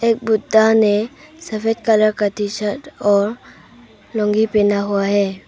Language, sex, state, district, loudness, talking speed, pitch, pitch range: Hindi, female, Arunachal Pradesh, Papum Pare, -17 LUFS, 140 wpm, 215 Hz, 205-225 Hz